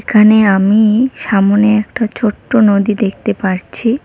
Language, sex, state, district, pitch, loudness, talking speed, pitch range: Bengali, female, West Bengal, Cooch Behar, 215 Hz, -12 LUFS, 120 wpm, 205-225 Hz